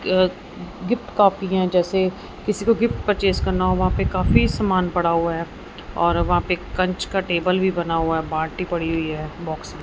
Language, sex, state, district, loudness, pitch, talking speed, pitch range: Hindi, female, Punjab, Fazilka, -21 LUFS, 180 Hz, 210 wpm, 170-190 Hz